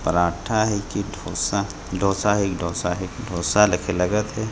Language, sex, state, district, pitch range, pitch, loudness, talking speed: Hindi, male, Chhattisgarh, Jashpur, 90-105 Hz, 100 Hz, -22 LUFS, 175 wpm